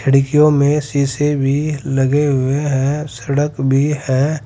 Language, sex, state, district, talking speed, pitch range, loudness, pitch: Hindi, male, Uttar Pradesh, Saharanpur, 135 wpm, 135-150 Hz, -16 LUFS, 140 Hz